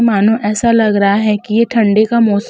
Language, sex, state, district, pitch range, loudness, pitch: Hindi, female, Uttar Pradesh, Jalaun, 210-230 Hz, -12 LUFS, 215 Hz